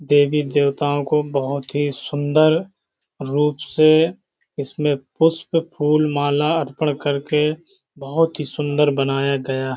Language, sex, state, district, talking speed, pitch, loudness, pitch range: Hindi, male, Uttar Pradesh, Hamirpur, 125 wpm, 145 Hz, -19 LUFS, 140-155 Hz